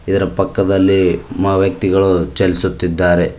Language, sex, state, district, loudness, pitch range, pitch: Kannada, male, Karnataka, Koppal, -15 LUFS, 90-95 Hz, 95 Hz